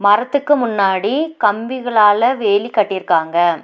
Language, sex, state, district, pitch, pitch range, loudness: Tamil, female, Tamil Nadu, Nilgiris, 210 Hz, 195-245 Hz, -15 LUFS